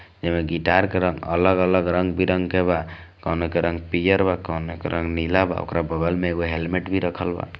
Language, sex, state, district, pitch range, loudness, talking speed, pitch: Hindi, male, Bihar, East Champaran, 85-90 Hz, -22 LUFS, 230 wpm, 85 Hz